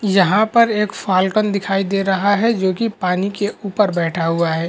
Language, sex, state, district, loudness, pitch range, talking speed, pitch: Hindi, male, Chhattisgarh, Bilaspur, -17 LUFS, 185-210 Hz, 190 wpm, 195 Hz